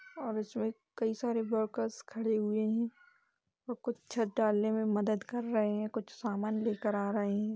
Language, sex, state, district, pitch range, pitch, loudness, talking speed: Hindi, female, Bihar, Sitamarhi, 215-230 Hz, 220 Hz, -34 LUFS, 180 wpm